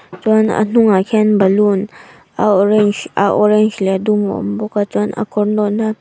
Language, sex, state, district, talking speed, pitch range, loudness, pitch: Mizo, female, Mizoram, Aizawl, 200 wpm, 200-215 Hz, -14 LUFS, 210 Hz